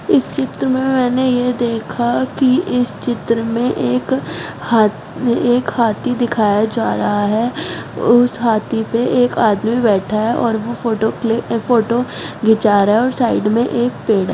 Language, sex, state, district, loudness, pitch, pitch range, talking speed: Hindi, female, Delhi, New Delhi, -16 LUFS, 235 Hz, 220-245 Hz, 155 wpm